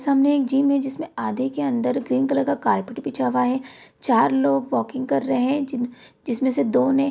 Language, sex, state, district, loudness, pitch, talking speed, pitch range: Hindi, female, Bihar, East Champaran, -22 LUFS, 260 Hz, 230 wpm, 245-275 Hz